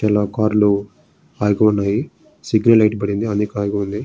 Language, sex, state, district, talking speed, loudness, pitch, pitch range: Telugu, male, Andhra Pradesh, Srikakulam, 180 wpm, -17 LUFS, 105 Hz, 100-110 Hz